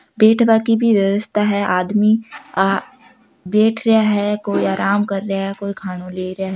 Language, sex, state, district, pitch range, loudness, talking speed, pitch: Marwari, female, Rajasthan, Nagaur, 195-220 Hz, -17 LUFS, 185 wpm, 205 Hz